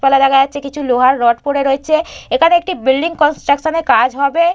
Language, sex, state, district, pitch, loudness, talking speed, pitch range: Bengali, female, West Bengal, Purulia, 280 Hz, -14 LUFS, 210 wpm, 270-315 Hz